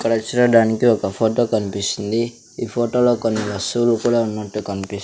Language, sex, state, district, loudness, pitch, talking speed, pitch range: Telugu, male, Andhra Pradesh, Sri Satya Sai, -19 LUFS, 115 Hz, 145 wpm, 105-120 Hz